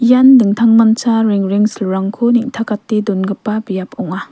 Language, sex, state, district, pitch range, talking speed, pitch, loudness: Garo, female, Meghalaya, West Garo Hills, 200-235 Hz, 95 wpm, 215 Hz, -13 LUFS